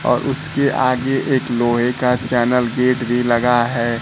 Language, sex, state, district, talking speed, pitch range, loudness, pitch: Hindi, male, Bihar, Kaimur, 165 wpm, 120-130 Hz, -17 LUFS, 125 Hz